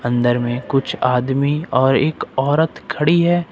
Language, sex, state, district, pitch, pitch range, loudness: Hindi, male, Uttar Pradesh, Lucknow, 135 Hz, 125-155 Hz, -18 LUFS